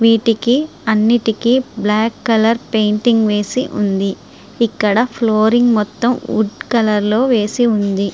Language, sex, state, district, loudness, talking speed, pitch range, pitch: Telugu, female, Andhra Pradesh, Srikakulam, -15 LUFS, 110 wpm, 210-235 Hz, 225 Hz